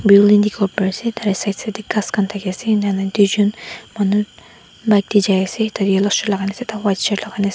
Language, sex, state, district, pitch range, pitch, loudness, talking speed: Nagamese, female, Nagaland, Dimapur, 200-215 Hz, 205 Hz, -17 LUFS, 260 wpm